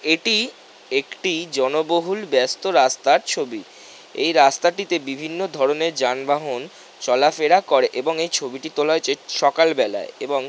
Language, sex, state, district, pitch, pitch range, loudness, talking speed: Bengali, male, West Bengal, North 24 Parganas, 165 Hz, 145-215 Hz, -20 LUFS, 115 wpm